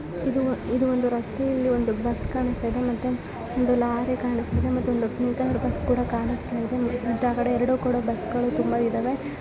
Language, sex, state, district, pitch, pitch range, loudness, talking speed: Kannada, female, Karnataka, Shimoga, 245 Hz, 235-250 Hz, -25 LUFS, 135 wpm